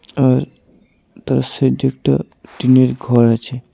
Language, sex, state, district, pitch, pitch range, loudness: Bengali, male, West Bengal, Alipurduar, 125 Hz, 115-130 Hz, -16 LUFS